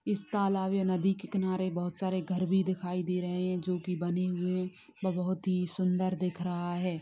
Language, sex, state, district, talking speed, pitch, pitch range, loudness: Hindi, female, Bihar, Sitamarhi, 205 wpm, 185 Hz, 180-185 Hz, -32 LUFS